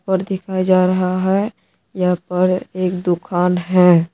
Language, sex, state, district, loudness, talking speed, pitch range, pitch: Hindi, male, Tripura, West Tripura, -17 LUFS, 145 wpm, 180-185 Hz, 185 Hz